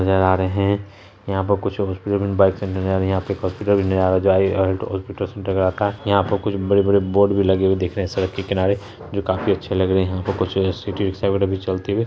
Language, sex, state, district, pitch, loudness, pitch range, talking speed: Hindi, male, Bihar, Saharsa, 95 Hz, -20 LUFS, 95-100 Hz, 240 wpm